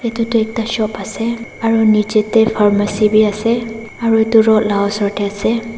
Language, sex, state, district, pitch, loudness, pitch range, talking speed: Nagamese, female, Nagaland, Dimapur, 220 Hz, -15 LUFS, 210-225 Hz, 175 wpm